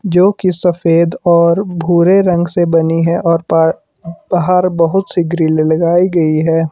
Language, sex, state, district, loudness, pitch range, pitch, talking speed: Hindi, male, Himachal Pradesh, Shimla, -12 LUFS, 165-180 Hz, 170 Hz, 160 wpm